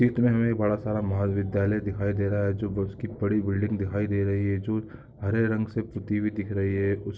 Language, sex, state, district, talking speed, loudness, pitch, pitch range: Hindi, male, Chhattisgarh, Korba, 240 wpm, -27 LUFS, 105 Hz, 100-110 Hz